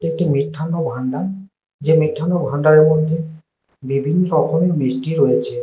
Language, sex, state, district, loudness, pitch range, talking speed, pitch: Bengali, male, Karnataka, Bangalore, -17 LUFS, 140-165 Hz, 115 wpm, 155 Hz